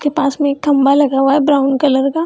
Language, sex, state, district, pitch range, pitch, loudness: Hindi, female, Bihar, Gaya, 275-290 Hz, 285 Hz, -13 LUFS